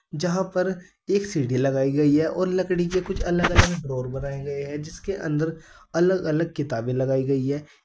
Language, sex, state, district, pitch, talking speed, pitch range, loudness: Hindi, male, Uttar Pradesh, Saharanpur, 160 Hz, 190 wpm, 140-180 Hz, -24 LUFS